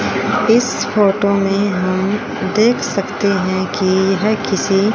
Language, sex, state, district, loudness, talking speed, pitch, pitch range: Hindi, female, Haryana, Rohtak, -16 LUFS, 120 wpm, 200 Hz, 190-210 Hz